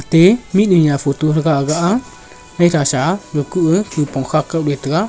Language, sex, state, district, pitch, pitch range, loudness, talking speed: Wancho, male, Arunachal Pradesh, Longding, 160 Hz, 145-180 Hz, -15 LUFS, 190 wpm